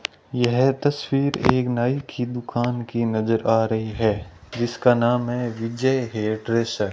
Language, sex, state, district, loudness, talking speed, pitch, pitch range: Hindi, male, Rajasthan, Bikaner, -22 LUFS, 155 wpm, 120 Hz, 115-125 Hz